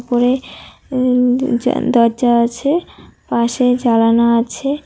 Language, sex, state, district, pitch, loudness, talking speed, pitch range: Bengali, female, West Bengal, Cooch Behar, 245 Hz, -15 LUFS, 75 wpm, 235-255 Hz